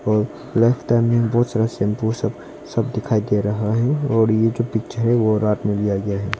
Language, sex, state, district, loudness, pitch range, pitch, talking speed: Hindi, male, Arunachal Pradesh, Longding, -20 LUFS, 105-115 Hz, 110 Hz, 215 wpm